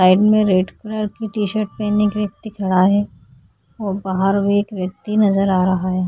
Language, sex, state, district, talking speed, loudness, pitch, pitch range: Hindi, female, Maharashtra, Aurangabad, 205 wpm, -18 LUFS, 200 Hz, 185-210 Hz